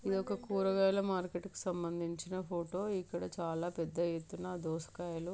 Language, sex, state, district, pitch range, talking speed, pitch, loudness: Telugu, female, Telangana, Nalgonda, 170-190 Hz, 110 wpm, 180 Hz, -37 LUFS